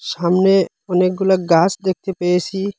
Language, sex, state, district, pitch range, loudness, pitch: Bengali, male, Assam, Hailakandi, 180-195 Hz, -17 LUFS, 185 Hz